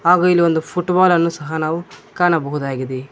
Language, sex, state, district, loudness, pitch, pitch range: Kannada, male, Karnataka, Koppal, -17 LUFS, 170 Hz, 150-175 Hz